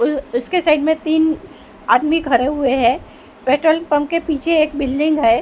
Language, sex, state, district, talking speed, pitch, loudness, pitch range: Hindi, female, Maharashtra, Mumbai Suburban, 165 wpm, 305 Hz, -17 LUFS, 270-315 Hz